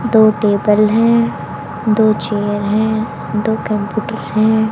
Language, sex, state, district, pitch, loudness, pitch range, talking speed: Hindi, female, Haryana, Jhajjar, 215 Hz, -15 LUFS, 210-220 Hz, 115 wpm